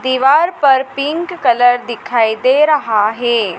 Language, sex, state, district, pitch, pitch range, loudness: Hindi, female, Madhya Pradesh, Dhar, 260 Hz, 235-300 Hz, -13 LUFS